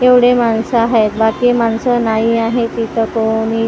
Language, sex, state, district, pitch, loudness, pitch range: Marathi, female, Maharashtra, Gondia, 230 Hz, -14 LUFS, 225-240 Hz